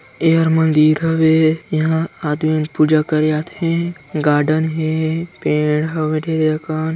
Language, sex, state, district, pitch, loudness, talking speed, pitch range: Chhattisgarhi, male, Chhattisgarh, Sarguja, 155 Hz, -17 LUFS, 120 wpm, 155-160 Hz